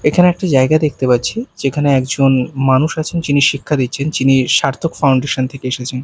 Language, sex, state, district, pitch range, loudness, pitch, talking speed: Bengali, male, Bihar, Katihar, 130-155 Hz, -15 LUFS, 135 Hz, 170 wpm